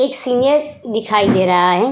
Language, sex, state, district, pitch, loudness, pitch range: Hindi, female, Uttar Pradesh, Budaun, 225 Hz, -15 LUFS, 205-265 Hz